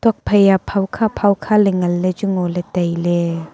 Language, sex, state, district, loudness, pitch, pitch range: Wancho, female, Arunachal Pradesh, Longding, -17 LUFS, 190 Hz, 175-205 Hz